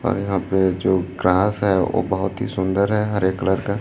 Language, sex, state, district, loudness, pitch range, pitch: Hindi, male, Chhattisgarh, Raipur, -20 LUFS, 95-105 Hz, 95 Hz